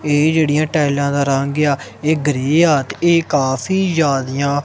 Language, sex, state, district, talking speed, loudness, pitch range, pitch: Punjabi, male, Punjab, Kapurthala, 170 wpm, -16 LUFS, 140-155 Hz, 145 Hz